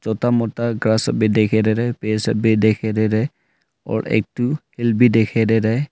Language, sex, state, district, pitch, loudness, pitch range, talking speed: Hindi, male, Arunachal Pradesh, Longding, 110 Hz, -18 LUFS, 110-120 Hz, 235 wpm